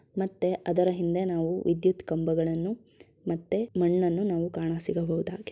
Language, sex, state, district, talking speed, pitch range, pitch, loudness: Kannada, female, Karnataka, Shimoga, 110 wpm, 165-185 Hz, 175 Hz, -28 LUFS